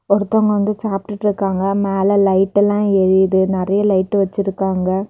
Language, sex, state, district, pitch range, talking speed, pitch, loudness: Tamil, female, Tamil Nadu, Kanyakumari, 190-205 Hz, 120 wpm, 195 Hz, -16 LUFS